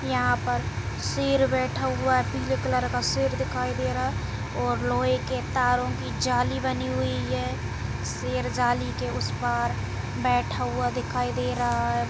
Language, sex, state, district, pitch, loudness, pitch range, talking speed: Kumaoni, female, Uttarakhand, Tehri Garhwal, 125 Hz, -26 LUFS, 120-125 Hz, 165 wpm